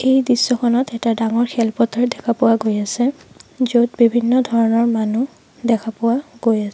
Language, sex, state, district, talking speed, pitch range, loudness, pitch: Assamese, female, Assam, Sonitpur, 160 wpm, 225-245 Hz, -18 LUFS, 235 Hz